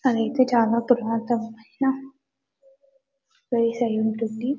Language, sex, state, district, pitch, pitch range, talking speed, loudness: Telugu, female, Telangana, Karimnagar, 240 Hz, 230-270 Hz, 65 wpm, -23 LUFS